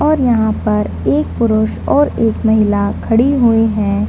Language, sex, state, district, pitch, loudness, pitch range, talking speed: Hindi, female, Uttar Pradesh, Deoria, 225 Hz, -14 LUFS, 215-240 Hz, 160 wpm